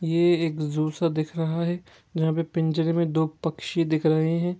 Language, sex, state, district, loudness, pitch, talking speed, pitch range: Hindi, male, Jharkhand, Jamtara, -25 LUFS, 165 Hz, 210 wpm, 160-170 Hz